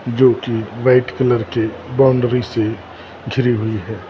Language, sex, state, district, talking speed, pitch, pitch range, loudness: Hindi, male, Maharashtra, Gondia, 160 wpm, 120 Hz, 110-125 Hz, -17 LUFS